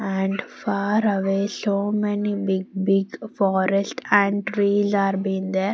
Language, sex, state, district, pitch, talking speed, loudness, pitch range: English, female, Punjab, Pathankot, 200 Hz, 135 wpm, -22 LUFS, 195-205 Hz